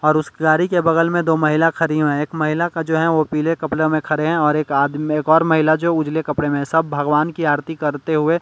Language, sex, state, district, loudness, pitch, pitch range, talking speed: Hindi, male, Delhi, New Delhi, -18 LUFS, 155 Hz, 150-165 Hz, 270 wpm